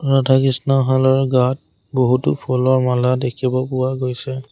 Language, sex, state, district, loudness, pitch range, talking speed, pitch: Assamese, male, Assam, Sonitpur, -17 LUFS, 125-130 Hz, 135 wpm, 130 Hz